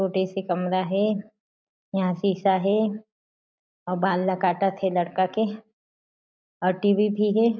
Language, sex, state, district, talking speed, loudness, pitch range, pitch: Chhattisgarhi, female, Chhattisgarh, Jashpur, 135 wpm, -24 LUFS, 185-210 Hz, 195 Hz